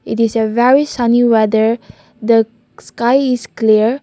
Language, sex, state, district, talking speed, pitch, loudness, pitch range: English, female, Nagaland, Kohima, 150 wpm, 230 Hz, -14 LUFS, 220-245 Hz